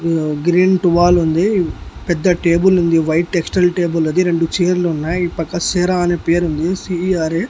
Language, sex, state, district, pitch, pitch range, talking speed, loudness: Telugu, male, Andhra Pradesh, Annamaya, 175 Hz, 165-180 Hz, 160 wpm, -16 LUFS